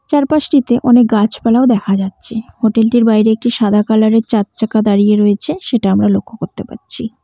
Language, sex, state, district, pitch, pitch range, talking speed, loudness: Bengali, female, West Bengal, Cooch Behar, 225 Hz, 210-240 Hz, 150 wpm, -12 LUFS